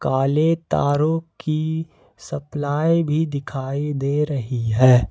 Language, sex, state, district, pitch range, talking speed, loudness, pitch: Hindi, male, Jharkhand, Ranchi, 135-160 Hz, 105 wpm, -21 LUFS, 145 Hz